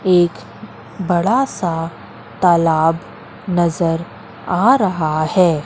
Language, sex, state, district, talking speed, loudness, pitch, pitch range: Hindi, female, Madhya Pradesh, Katni, 75 wpm, -17 LUFS, 170 Hz, 155-180 Hz